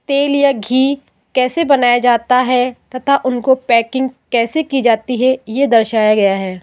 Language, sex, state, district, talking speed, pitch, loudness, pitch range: Hindi, female, Rajasthan, Jaipur, 165 wpm, 255 Hz, -14 LUFS, 230-270 Hz